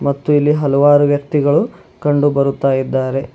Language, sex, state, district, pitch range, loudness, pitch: Kannada, male, Karnataka, Bidar, 135-145 Hz, -14 LUFS, 145 Hz